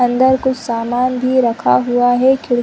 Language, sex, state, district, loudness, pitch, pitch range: Hindi, female, Chhattisgarh, Rajnandgaon, -14 LUFS, 245 Hz, 240-260 Hz